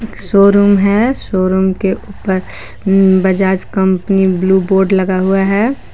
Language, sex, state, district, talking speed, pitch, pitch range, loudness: Hindi, female, Jharkhand, Palamu, 130 wpm, 190 Hz, 190-200 Hz, -12 LUFS